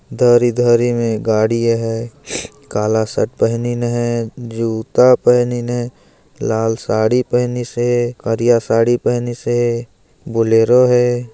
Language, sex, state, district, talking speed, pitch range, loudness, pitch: Hindi, male, Chhattisgarh, Jashpur, 105 wpm, 115-120 Hz, -16 LUFS, 120 Hz